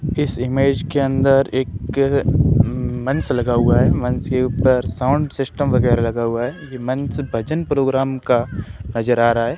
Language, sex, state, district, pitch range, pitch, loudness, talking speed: Hindi, male, Rajasthan, Barmer, 120-135 Hz, 130 Hz, -18 LUFS, 170 wpm